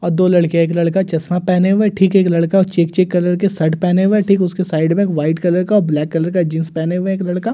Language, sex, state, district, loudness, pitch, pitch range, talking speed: Hindi, male, Delhi, New Delhi, -15 LUFS, 180 Hz, 165-190 Hz, 280 wpm